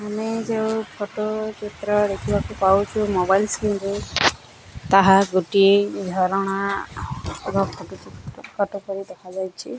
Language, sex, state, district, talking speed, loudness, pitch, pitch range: Odia, male, Odisha, Nuapada, 105 wpm, -21 LUFS, 200 Hz, 190-210 Hz